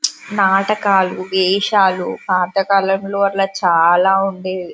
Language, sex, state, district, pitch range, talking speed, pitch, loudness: Telugu, female, Telangana, Karimnagar, 185-195 Hz, 75 wpm, 195 Hz, -16 LUFS